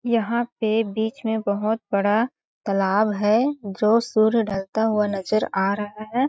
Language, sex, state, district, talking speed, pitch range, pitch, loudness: Hindi, female, Chhattisgarh, Balrampur, 155 wpm, 205-230 Hz, 220 Hz, -22 LUFS